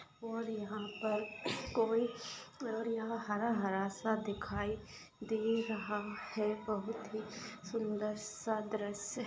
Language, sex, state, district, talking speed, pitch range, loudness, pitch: Hindi, female, Maharashtra, Dhule, 110 wpm, 210-225 Hz, -38 LUFS, 215 Hz